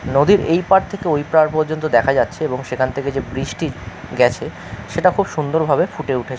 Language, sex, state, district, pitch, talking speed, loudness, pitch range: Bengali, male, West Bengal, Kolkata, 155 Hz, 195 wpm, -18 LUFS, 135-170 Hz